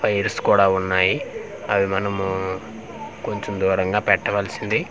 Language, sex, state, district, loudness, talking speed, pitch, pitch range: Telugu, male, Andhra Pradesh, Manyam, -21 LUFS, 100 wpm, 95 Hz, 95-100 Hz